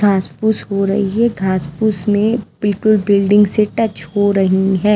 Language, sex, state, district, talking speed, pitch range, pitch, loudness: Hindi, female, Himachal Pradesh, Shimla, 155 wpm, 195-215 Hz, 205 Hz, -15 LUFS